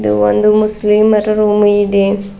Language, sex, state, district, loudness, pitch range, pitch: Kannada, female, Karnataka, Bidar, -11 LUFS, 195-215 Hz, 210 Hz